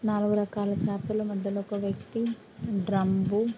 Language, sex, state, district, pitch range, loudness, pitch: Telugu, female, Andhra Pradesh, Krishna, 200-215 Hz, -29 LUFS, 205 Hz